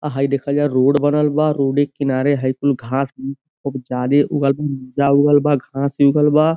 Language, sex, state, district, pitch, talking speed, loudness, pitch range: Bhojpuri, male, Uttar Pradesh, Gorakhpur, 140 Hz, 200 wpm, -17 LUFS, 135-145 Hz